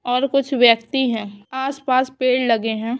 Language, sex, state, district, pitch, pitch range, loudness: Hindi, female, West Bengal, Paschim Medinipur, 255 Hz, 230-265 Hz, -19 LUFS